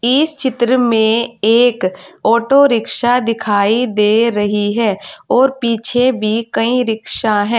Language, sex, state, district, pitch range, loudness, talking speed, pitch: Hindi, female, Uttar Pradesh, Saharanpur, 215-245 Hz, -14 LUFS, 125 wpm, 230 Hz